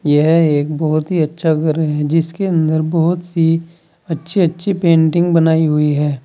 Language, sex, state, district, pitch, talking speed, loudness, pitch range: Hindi, male, Uttar Pradesh, Saharanpur, 160 Hz, 165 wpm, -15 LUFS, 155-170 Hz